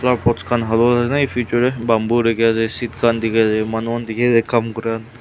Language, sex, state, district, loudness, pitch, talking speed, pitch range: Nagamese, male, Nagaland, Kohima, -18 LUFS, 115 Hz, 220 wpm, 115-120 Hz